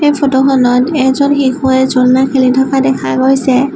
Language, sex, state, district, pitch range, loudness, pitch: Assamese, female, Assam, Sonitpur, 260-275 Hz, -10 LUFS, 265 Hz